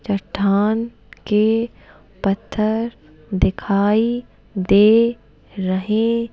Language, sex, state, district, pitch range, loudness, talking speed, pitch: Hindi, female, Madhya Pradesh, Bhopal, 200-230 Hz, -19 LUFS, 55 wpm, 215 Hz